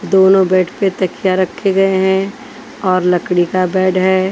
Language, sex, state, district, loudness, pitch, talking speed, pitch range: Hindi, female, Maharashtra, Washim, -14 LUFS, 190 Hz, 165 wpm, 185-195 Hz